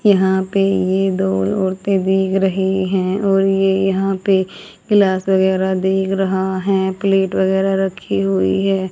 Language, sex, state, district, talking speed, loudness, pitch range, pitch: Hindi, female, Haryana, Jhajjar, 150 wpm, -17 LUFS, 190-195 Hz, 190 Hz